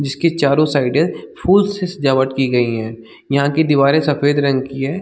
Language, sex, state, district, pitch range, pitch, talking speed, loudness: Hindi, male, Chhattisgarh, Bilaspur, 135-155 Hz, 140 Hz, 205 wpm, -16 LUFS